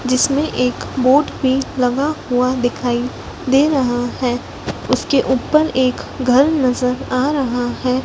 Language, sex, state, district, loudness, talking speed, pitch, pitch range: Hindi, female, Madhya Pradesh, Dhar, -17 LUFS, 135 wpm, 255 Hz, 250-275 Hz